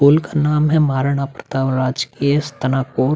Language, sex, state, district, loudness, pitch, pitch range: Hindi, male, Uttar Pradesh, Budaun, -18 LUFS, 140 Hz, 130-150 Hz